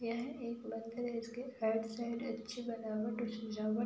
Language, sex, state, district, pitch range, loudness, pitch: Hindi, female, Uttar Pradesh, Budaun, 225-235 Hz, -40 LUFS, 230 Hz